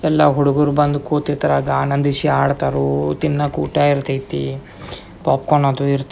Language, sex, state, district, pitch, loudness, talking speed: Kannada, male, Karnataka, Belgaum, 140 Hz, -17 LUFS, 110 wpm